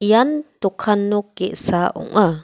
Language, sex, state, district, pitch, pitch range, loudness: Garo, female, Meghalaya, West Garo Hills, 205 Hz, 190-215 Hz, -19 LUFS